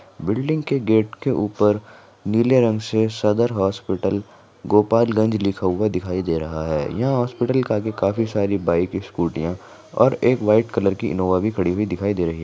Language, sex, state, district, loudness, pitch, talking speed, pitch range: Hindi, female, Rajasthan, Nagaur, -20 LUFS, 105 Hz, 190 wpm, 95-115 Hz